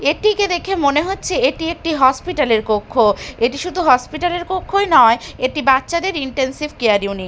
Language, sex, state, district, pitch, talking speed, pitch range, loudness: Bengali, female, Bihar, Katihar, 295 Hz, 175 wpm, 250-350 Hz, -17 LUFS